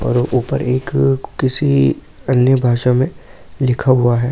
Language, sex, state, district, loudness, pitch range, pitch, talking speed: Hindi, male, Delhi, New Delhi, -16 LUFS, 120-130 Hz, 125 Hz, 155 wpm